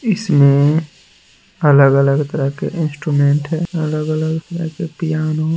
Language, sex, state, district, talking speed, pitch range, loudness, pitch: Hindi, male, Bihar, Muzaffarpur, 120 wpm, 145-160 Hz, -16 LUFS, 155 Hz